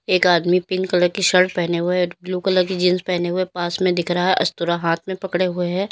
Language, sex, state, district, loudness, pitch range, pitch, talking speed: Hindi, female, Uttar Pradesh, Lalitpur, -19 LUFS, 175-185 Hz, 180 Hz, 255 wpm